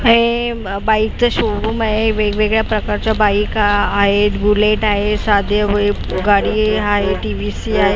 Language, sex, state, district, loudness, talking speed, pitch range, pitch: Marathi, female, Maharashtra, Mumbai Suburban, -15 LUFS, 120 wpm, 205-220 Hz, 210 Hz